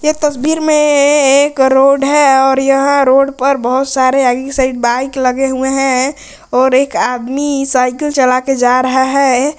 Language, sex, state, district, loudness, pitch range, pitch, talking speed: Hindi, male, Jharkhand, Garhwa, -11 LUFS, 260-280 Hz, 270 Hz, 180 wpm